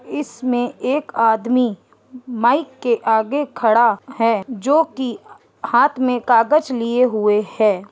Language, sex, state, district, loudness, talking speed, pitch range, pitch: Hindi, female, Uttar Pradesh, Ghazipur, -18 LUFS, 115 wpm, 225-260 Hz, 245 Hz